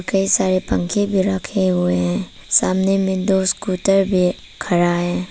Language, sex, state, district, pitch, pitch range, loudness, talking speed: Hindi, female, Arunachal Pradesh, Papum Pare, 185 Hz, 175-195 Hz, -18 LUFS, 160 wpm